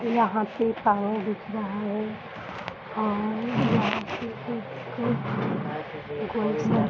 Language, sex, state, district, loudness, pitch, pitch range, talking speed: Hindi, female, Bihar, Bhagalpur, -28 LUFS, 215 Hz, 210-220 Hz, 120 wpm